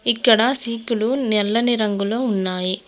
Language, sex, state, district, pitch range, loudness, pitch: Telugu, female, Telangana, Mahabubabad, 205-240 Hz, -16 LUFS, 230 Hz